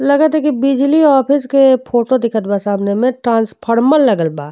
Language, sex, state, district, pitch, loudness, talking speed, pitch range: Bhojpuri, female, Uttar Pradesh, Deoria, 255 Hz, -13 LUFS, 175 wpm, 225-280 Hz